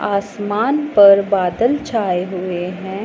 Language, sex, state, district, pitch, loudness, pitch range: Hindi, female, Punjab, Pathankot, 200 Hz, -16 LUFS, 185-220 Hz